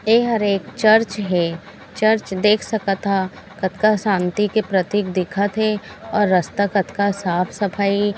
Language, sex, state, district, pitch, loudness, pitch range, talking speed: Chhattisgarhi, female, Chhattisgarh, Raigarh, 200 Hz, -19 LUFS, 190-215 Hz, 145 wpm